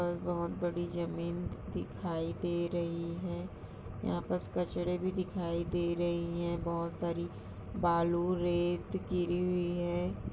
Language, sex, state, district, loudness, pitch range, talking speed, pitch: Hindi, female, Chhattisgarh, Sarguja, -35 LUFS, 170-175 Hz, 130 wpm, 170 Hz